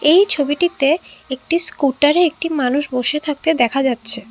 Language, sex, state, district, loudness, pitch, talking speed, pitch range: Bengali, female, Assam, Kamrup Metropolitan, -17 LUFS, 290 Hz, 140 wpm, 260-325 Hz